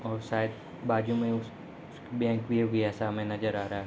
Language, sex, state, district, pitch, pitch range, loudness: Hindi, male, Bihar, Gopalganj, 110 Hz, 105-115 Hz, -31 LUFS